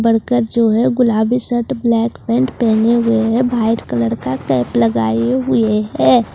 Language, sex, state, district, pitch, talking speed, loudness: Hindi, female, Bihar, Katihar, 230 Hz, 160 wpm, -15 LUFS